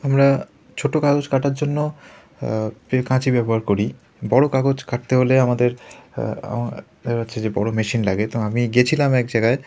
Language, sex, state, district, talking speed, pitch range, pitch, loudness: Bengali, male, West Bengal, Kolkata, 150 wpm, 115-135 Hz, 125 Hz, -20 LUFS